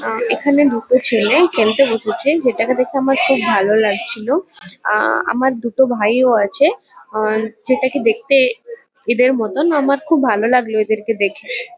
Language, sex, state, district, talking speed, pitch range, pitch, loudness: Bengali, female, West Bengal, Kolkata, 145 wpm, 225-285 Hz, 255 Hz, -15 LUFS